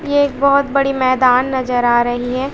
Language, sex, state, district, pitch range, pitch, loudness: Hindi, female, Bihar, West Champaran, 250-280 Hz, 260 Hz, -15 LUFS